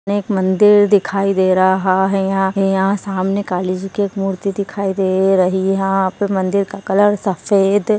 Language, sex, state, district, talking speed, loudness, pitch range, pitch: Hindi, female, Maharashtra, Solapur, 180 wpm, -16 LUFS, 190-200 Hz, 195 Hz